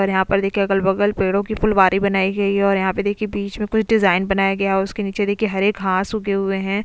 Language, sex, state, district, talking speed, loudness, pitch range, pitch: Hindi, female, Goa, North and South Goa, 280 wpm, -19 LUFS, 195-205 Hz, 200 Hz